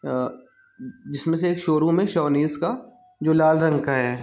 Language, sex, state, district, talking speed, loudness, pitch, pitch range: Hindi, male, Chhattisgarh, Bilaspur, 185 wpm, -22 LUFS, 160 Hz, 145-215 Hz